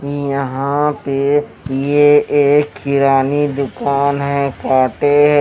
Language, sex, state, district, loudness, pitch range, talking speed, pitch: Hindi, male, Haryana, Rohtak, -15 LUFS, 135-145 Hz, 90 wpm, 140 Hz